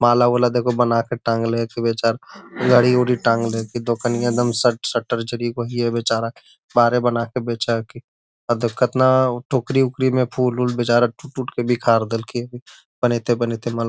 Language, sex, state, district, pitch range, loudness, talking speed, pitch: Magahi, male, Bihar, Gaya, 115-125 Hz, -20 LUFS, 160 wpm, 120 Hz